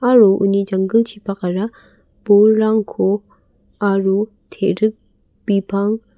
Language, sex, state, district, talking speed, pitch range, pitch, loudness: Garo, female, Meghalaya, West Garo Hills, 80 wpm, 195-220 Hz, 205 Hz, -17 LUFS